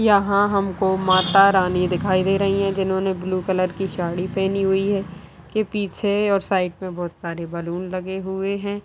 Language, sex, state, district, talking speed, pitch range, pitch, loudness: Hindi, female, Bihar, Darbhanga, 190 wpm, 185-195 Hz, 190 Hz, -21 LUFS